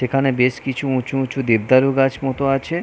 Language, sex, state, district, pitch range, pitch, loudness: Bengali, male, West Bengal, North 24 Parganas, 130-135 Hz, 135 Hz, -18 LUFS